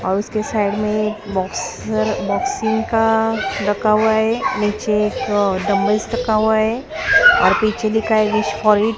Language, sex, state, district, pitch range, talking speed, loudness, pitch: Hindi, male, Maharashtra, Mumbai Suburban, 210-225 Hz, 145 wpm, -17 LUFS, 215 Hz